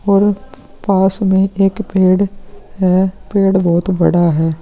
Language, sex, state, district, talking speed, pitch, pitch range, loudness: Hindi, male, Bihar, Vaishali, 130 wpm, 190 Hz, 185-200 Hz, -14 LUFS